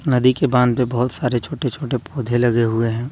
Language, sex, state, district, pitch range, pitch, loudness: Hindi, male, Jharkhand, Deoghar, 120-130 Hz, 125 Hz, -19 LUFS